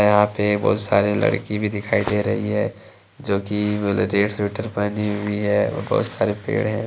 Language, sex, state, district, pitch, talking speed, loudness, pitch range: Hindi, male, Jharkhand, Deoghar, 105 Hz, 200 wpm, -21 LUFS, 100-105 Hz